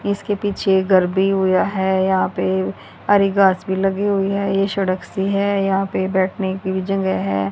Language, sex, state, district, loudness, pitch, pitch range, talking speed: Hindi, female, Haryana, Rohtak, -18 LUFS, 190 Hz, 190-195 Hz, 200 wpm